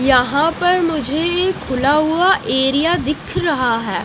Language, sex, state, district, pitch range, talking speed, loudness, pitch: Hindi, female, Haryana, Jhajjar, 265-345 Hz, 150 wpm, -16 LUFS, 305 Hz